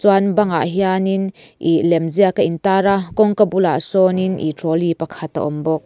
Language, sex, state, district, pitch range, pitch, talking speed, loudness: Mizo, female, Mizoram, Aizawl, 165-195 Hz, 185 Hz, 215 wpm, -17 LUFS